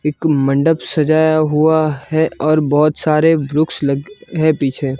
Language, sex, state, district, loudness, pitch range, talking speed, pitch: Hindi, male, Gujarat, Gandhinagar, -15 LUFS, 145-160 Hz, 145 wpm, 155 Hz